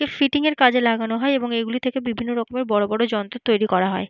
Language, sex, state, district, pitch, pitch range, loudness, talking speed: Bengali, female, West Bengal, Jalpaiguri, 235 Hz, 225-255 Hz, -21 LUFS, 220 wpm